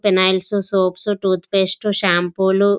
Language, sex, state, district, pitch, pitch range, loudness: Telugu, female, Andhra Pradesh, Visakhapatnam, 190 Hz, 185-200 Hz, -17 LUFS